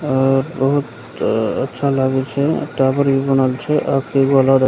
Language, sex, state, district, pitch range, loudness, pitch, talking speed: Maithili, male, Bihar, Begusarai, 130-140 Hz, -17 LUFS, 135 Hz, 130 wpm